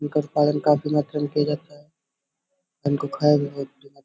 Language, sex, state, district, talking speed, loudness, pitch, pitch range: Hindi, male, Uttar Pradesh, Hamirpur, 165 wpm, -23 LUFS, 145 Hz, 140-150 Hz